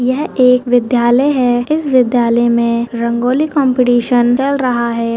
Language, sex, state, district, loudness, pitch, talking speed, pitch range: Hindi, female, Uttarakhand, Uttarkashi, -13 LUFS, 245 Hz, 140 wpm, 235-260 Hz